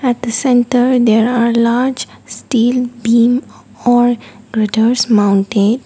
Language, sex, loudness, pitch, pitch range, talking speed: English, female, -13 LUFS, 235 Hz, 225-245 Hz, 100 wpm